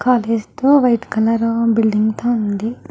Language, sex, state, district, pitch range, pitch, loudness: Telugu, female, Andhra Pradesh, Chittoor, 220-240 Hz, 230 Hz, -16 LUFS